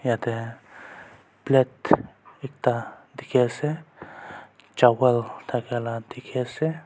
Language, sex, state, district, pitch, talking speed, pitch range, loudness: Nagamese, male, Nagaland, Kohima, 125 Hz, 85 wpm, 120-135 Hz, -24 LUFS